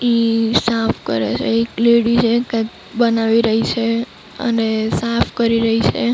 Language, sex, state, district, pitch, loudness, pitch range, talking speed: Gujarati, female, Maharashtra, Mumbai Suburban, 230 Hz, -17 LUFS, 225-235 Hz, 155 wpm